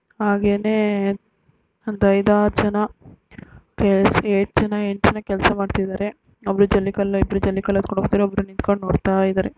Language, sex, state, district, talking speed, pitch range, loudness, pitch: Kannada, female, Karnataka, Dakshina Kannada, 125 wpm, 195-210 Hz, -20 LUFS, 200 Hz